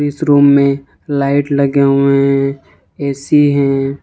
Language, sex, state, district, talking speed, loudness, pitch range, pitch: Hindi, male, Jharkhand, Ranchi, 135 wpm, -13 LUFS, 140-145 Hz, 140 Hz